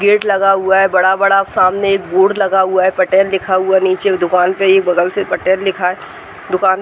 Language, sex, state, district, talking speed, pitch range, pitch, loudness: Hindi, female, Uttar Pradesh, Deoria, 230 wpm, 185-195 Hz, 190 Hz, -13 LUFS